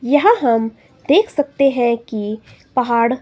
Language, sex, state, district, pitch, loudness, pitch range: Hindi, female, Himachal Pradesh, Shimla, 245 Hz, -17 LUFS, 230-275 Hz